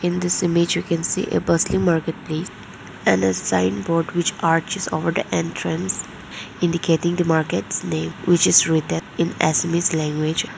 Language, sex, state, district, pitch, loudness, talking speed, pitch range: English, female, Arunachal Pradesh, Lower Dibang Valley, 170 Hz, -20 LUFS, 160 wpm, 160-175 Hz